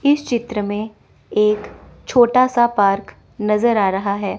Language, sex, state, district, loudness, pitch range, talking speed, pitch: Hindi, female, Chandigarh, Chandigarh, -18 LUFS, 205-240 Hz, 150 wpm, 210 Hz